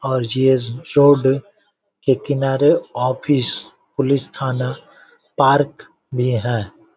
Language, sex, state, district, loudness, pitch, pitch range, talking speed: Hindi, male, Bihar, Vaishali, -18 LUFS, 135 Hz, 130-145 Hz, 95 wpm